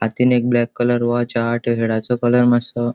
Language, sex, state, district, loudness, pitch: Konkani, male, Goa, North and South Goa, -18 LUFS, 120 Hz